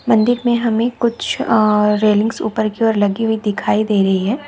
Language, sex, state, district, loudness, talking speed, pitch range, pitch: Hindi, female, Chhattisgarh, Raigarh, -16 LUFS, 200 wpm, 210-230 Hz, 220 Hz